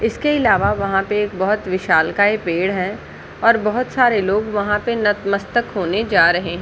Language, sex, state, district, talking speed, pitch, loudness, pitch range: Hindi, female, Chhattisgarh, Balrampur, 170 wpm, 205 Hz, -17 LUFS, 190-220 Hz